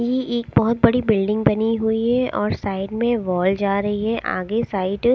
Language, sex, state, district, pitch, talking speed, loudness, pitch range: Hindi, female, Odisha, Sambalpur, 220 Hz, 210 wpm, -20 LUFS, 200-235 Hz